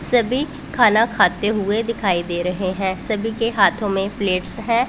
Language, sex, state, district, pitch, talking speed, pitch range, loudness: Hindi, female, Punjab, Pathankot, 210 Hz, 170 wpm, 190-230 Hz, -19 LUFS